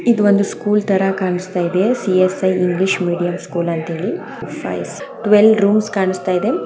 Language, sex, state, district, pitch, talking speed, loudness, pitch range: Kannada, female, Karnataka, Chamarajanagar, 190 Hz, 170 wpm, -17 LUFS, 180-205 Hz